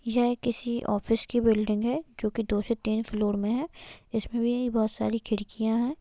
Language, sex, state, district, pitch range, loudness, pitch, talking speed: Hindi, female, Jharkhand, Jamtara, 215-240 Hz, -28 LUFS, 225 Hz, 200 wpm